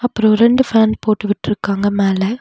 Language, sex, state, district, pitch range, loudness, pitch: Tamil, female, Tamil Nadu, Nilgiris, 205-225 Hz, -15 LUFS, 215 Hz